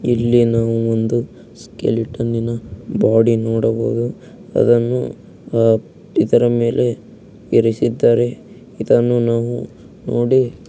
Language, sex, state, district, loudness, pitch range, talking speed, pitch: Kannada, male, Karnataka, Mysore, -17 LUFS, 115-120 Hz, 80 wpm, 115 Hz